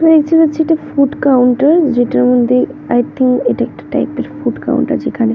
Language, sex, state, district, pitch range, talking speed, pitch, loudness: Bengali, female, West Bengal, North 24 Parganas, 245-305 Hz, 200 wpm, 260 Hz, -13 LUFS